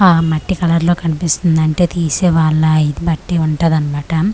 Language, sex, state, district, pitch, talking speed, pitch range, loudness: Telugu, female, Andhra Pradesh, Manyam, 165 Hz, 180 wpm, 155-170 Hz, -14 LUFS